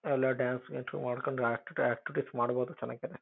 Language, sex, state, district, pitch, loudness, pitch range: Kannada, male, Karnataka, Chamarajanagar, 125 Hz, -34 LUFS, 125-130 Hz